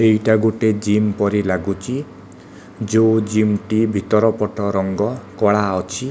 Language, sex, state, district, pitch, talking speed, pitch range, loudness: Odia, male, Odisha, Khordha, 105 Hz, 130 wpm, 100-110 Hz, -18 LUFS